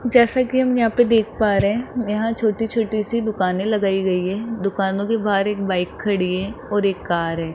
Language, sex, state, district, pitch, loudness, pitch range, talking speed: Hindi, male, Rajasthan, Jaipur, 210 Hz, -20 LUFS, 195-230 Hz, 220 wpm